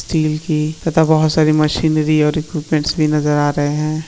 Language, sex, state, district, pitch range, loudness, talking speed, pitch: Hindi, male, Bihar, Begusarai, 150-155 Hz, -16 LUFS, 235 wpm, 155 Hz